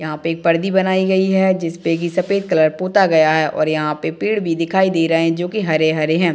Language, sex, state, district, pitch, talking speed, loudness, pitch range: Hindi, female, Bihar, Gopalganj, 165 Hz, 245 wpm, -17 LUFS, 160-190 Hz